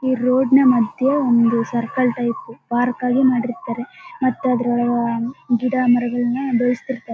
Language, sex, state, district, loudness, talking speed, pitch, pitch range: Kannada, female, Karnataka, Bellary, -19 LUFS, 145 wpm, 245 Hz, 240-255 Hz